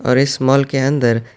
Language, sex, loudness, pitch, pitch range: Urdu, male, -15 LUFS, 135 Hz, 120-140 Hz